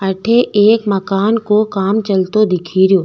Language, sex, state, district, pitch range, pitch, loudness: Rajasthani, female, Rajasthan, Nagaur, 190-215 Hz, 200 Hz, -14 LUFS